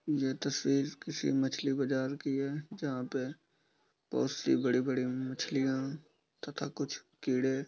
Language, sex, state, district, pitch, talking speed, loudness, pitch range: Hindi, male, Bihar, East Champaran, 135 Hz, 135 wpm, -34 LUFS, 130-140 Hz